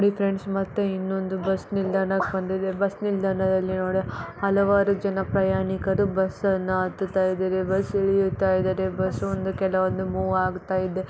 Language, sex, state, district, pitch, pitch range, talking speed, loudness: Kannada, female, Karnataka, Bellary, 190 Hz, 185-195 Hz, 150 wpm, -24 LUFS